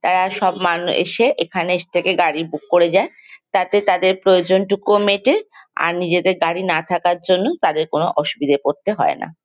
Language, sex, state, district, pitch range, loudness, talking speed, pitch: Bengali, female, West Bengal, Jalpaiguri, 170-195 Hz, -17 LUFS, 170 wpm, 180 Hz